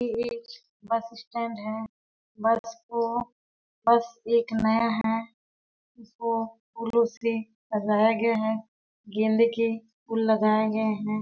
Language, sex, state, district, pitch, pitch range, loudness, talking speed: Hindi, female, Chhattisgarh, Balrampur, 230 Hz, 220-230 Hz, -27 LUFS, 125 wpm